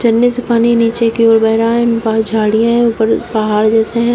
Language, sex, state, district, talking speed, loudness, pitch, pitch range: Hindi, female, Uttar Pradesh, Shamli, 230 wpm, -12 LUFS, 230 Hz, 220-235 Hz